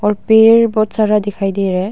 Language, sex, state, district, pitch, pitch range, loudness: Hindi, female, Arunachal Pradesh, Longding, 210 Hz, 200-220 Hz, -13 LUFS